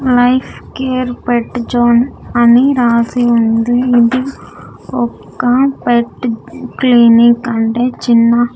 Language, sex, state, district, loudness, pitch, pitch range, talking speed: Telugu, female, Andhra Pradesh, Sri Satya Sai, -12 LUFS, 240 Hz, 235-250 Hz, 100 wpm